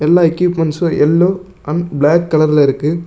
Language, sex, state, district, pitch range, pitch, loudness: Tamil, male, Tamil Nadu, Namakkal, 150-175 Hz, 165 Hz, -13 LUFS